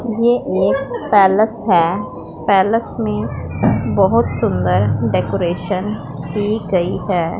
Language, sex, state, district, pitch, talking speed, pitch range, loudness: Hindi, female, Punjab, Pathankot, 190 Hz, 95 wpm, 165-215 Hz, -17 LUFS